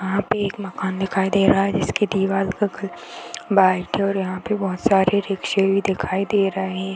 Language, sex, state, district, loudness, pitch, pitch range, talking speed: Hindi, female, Bihar, East Champaran, -21 LUFS, 195 Hz, 190-200 Hz, 215 wpm